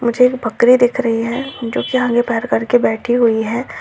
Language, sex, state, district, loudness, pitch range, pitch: Hindi, female, Bihar, Darbhanga, -15 LUFS, 230-250 Hz, 240 Hz